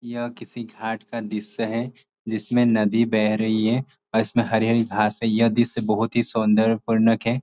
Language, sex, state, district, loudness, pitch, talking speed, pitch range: Hindi, male, Uttar Pradesh, Ghazipur, -22 LUFS, 115 Hz, 195 wpm, 110-120 Hz